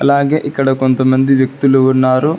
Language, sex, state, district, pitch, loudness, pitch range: Telugu, male, Telangana, Hyderabad, 135 Hz, -12 LUFS, 130-140 Hz